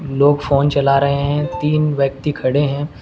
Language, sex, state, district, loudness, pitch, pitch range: Hindi, male, Uttar Pradesh, Saharanpur, -16 LUFS, 140 Hz, 140-150 Hz